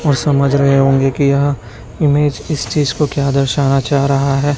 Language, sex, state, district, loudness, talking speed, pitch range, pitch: Hindi, male, Chhattisgarh, Raipur, -14 LUFS, 185 wpm, 135-145 Hz, 140 Hz